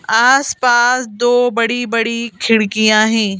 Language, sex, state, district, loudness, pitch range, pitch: Hindi, female, Madhya Pradesh, Bhopal, -13 LUFS, 220-245 Hz, 235 Hz